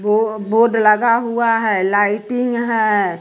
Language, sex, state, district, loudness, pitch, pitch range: Hindi, female, Bihar, West Champaran, -16 LUFS, 220 Hz, 210-230 Hz